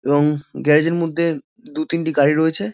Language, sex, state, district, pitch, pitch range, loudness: Bengali, male, West Bengal, Dakshin Dinajpur, 160 Hz, 145-170 Hz, -18 LUFS